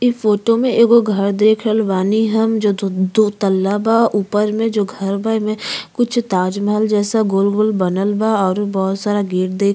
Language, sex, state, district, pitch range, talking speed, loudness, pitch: Bhojpuri, female, Uttar Pradesh, Ghazipur, 195-220 Hz, 195 wpm, -16 LUFS, 210 Hz